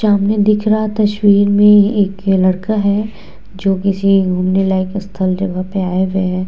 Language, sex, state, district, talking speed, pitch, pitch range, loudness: Hindi, female, Bihar, Vaishali, 175 wpm, 195 Hz, 190-205 Hz, -14 LUFS